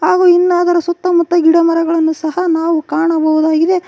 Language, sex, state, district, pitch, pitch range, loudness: Kannada, female, Karnataka, Koppal, 335 Hz, 320-350 Hz, -12 LUFS